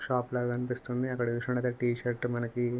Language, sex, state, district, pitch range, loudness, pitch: Telugu, male, Telangana, Nalgonda, 120-125 Hz, -32 LUFS, 120 Hz